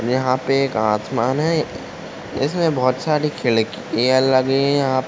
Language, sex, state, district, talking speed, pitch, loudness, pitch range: Hindi, male, Uttar Pradesh, Ghazipur, 165 wpm, 130 Hz, -19 LUFS, 125-140 Hz